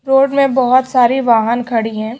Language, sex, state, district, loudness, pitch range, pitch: Hindi, female, Maharashtra, Aurangabad, -13 LUFS, 230-270 Hz, 250 Hz